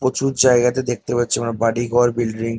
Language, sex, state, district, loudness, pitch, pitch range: Bengali, male, West Bengal, North 24 Parganas, -18 LUFS, 120 Hz, 115-125 Hz